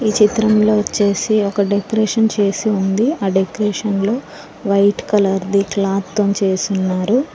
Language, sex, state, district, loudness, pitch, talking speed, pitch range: Telugu, female, Telangana, Mahabubabad, -16 LUFS, 205 Hz, 140 wpm, 195-215 Hz